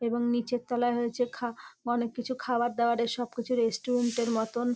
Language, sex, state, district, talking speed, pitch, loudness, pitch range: Bengali, female, West Bengal, North 24 Parganas, 165 wpm, 240 Hz, -30 LUFS, 235-245 Hz